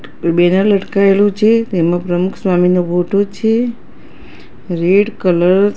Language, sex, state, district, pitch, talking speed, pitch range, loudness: Gujarati, female, Gujarat, Gandhinagar, 190 Hz, 115 wpm, 175-205 Hz, -14 LUFS